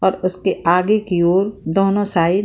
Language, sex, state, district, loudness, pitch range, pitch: Hindi, female, Bihar, Saran, -17 LUFS, 175-195 Hz, 190 Hz